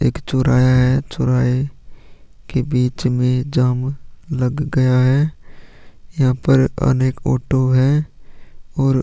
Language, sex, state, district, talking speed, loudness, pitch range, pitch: Hindi, male, Chhattisgarh, Sukma, 140 wpm, -17 LUFS, 125-140 Hz, 130 Hz